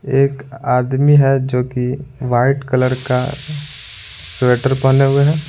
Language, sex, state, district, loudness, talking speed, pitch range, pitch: Hindi, male, Bihar, Patna, -16 LUFS, 130 wpm, 125-140 Hz, 135 Hz